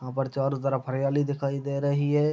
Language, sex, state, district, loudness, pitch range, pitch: Hindi, male, Bihar, Sitamarhi, -27 LUFS, 135-140 Hz, 140 Hz